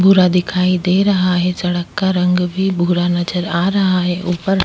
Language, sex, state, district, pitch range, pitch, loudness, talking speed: Hindi, female, Chhattisgarh, Kabirdham, 180-190 Hz, 180 Hz, -16 LUFS, 195 wpm